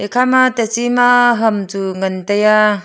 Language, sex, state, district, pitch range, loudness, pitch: Wancho, female, Arunachal Pradesh, Longding, 205-245 Hz, -14 LUFS, 215 Hz